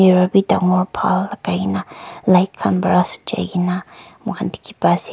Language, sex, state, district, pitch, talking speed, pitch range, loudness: Nagamese, male, Nagaland, Kohima, 180 Hz, 175 wpm, 180-185 Hz, -18 LUFS